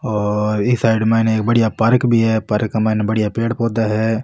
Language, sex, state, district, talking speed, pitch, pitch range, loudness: Rajasthani, male, Rajasthan, Nagaur, 210 wpm, 110 Hz, 110-115 Hz, -17 LUFS